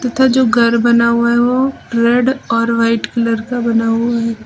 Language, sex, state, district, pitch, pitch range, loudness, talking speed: Hindi, female, Uttar Pradesh, Lucknow, 235 Hz, 230-245 Hz, -14 LUFS, 200 wpm